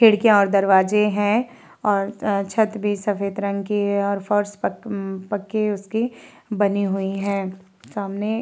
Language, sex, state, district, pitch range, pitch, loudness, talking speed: Hindi, female, Uttar Pradesh, Varanasi, 200-210 Hz, 205 Hz, -21 LUFS, 150 wpm